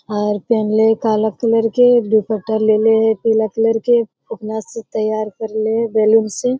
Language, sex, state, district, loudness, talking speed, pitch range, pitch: Hindi, female, Bihar, Jamui, -16 LUFS, 175 wpm, 215-225 Hz, 220 Hz